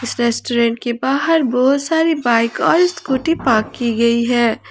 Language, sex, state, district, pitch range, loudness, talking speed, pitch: Hindi, female, Jharkhand, Ranchi, 235-300 Hz, -16 LUFS, 165 wpm, 245 Hz